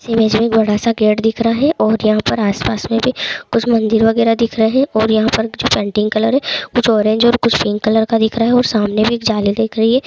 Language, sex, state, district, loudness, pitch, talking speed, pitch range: Hindi, male, Bihar, Begusarai, -14 LUFS, 225 Hz, 255 wpm, 215-230 Hz